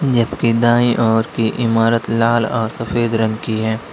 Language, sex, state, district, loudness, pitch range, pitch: Hindi, male, Uttar Pradesh, Lalitpur, -16 LUFS, 115-120 Hz, 115 Hz